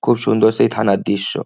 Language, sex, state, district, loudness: Bengali, male, West Bengal, Jhargram, -16 LUFS